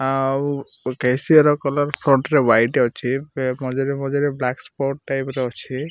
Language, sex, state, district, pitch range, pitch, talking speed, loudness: Odia, male, Odisha, Malkangiri, 130-140 Hz, 135 Hz, 150 wpm, -20 LUFS